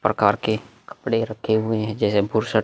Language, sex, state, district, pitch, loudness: Hindi, male, Bihar, Vaishali, 110 Hz, -22 LUFS